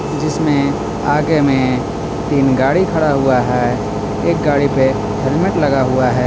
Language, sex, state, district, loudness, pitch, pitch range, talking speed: Hindi, male, Jharkhand, Garhwa, -15 LUFS, 140 Hz, 130-150 Hz, 145 wpm